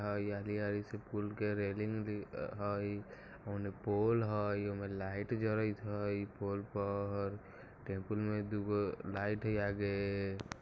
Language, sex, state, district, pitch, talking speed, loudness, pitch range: Maithili, male, Bihar, Muzaffarpur, 100 Hz, 80 wpm, -38 LUFS, 100-105 Hz